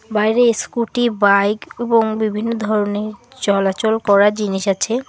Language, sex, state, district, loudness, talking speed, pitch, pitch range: Bengali, female, West Bengal, Alipurduar, -17 LUFS, 120 wpm, 215 Hz, 205-230 Hz